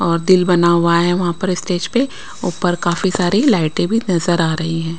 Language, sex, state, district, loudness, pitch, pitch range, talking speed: Hindi, female, Bihar, West Champaran, -16 LUFS, 175 Hz, 170-185 Hz, 215 wpm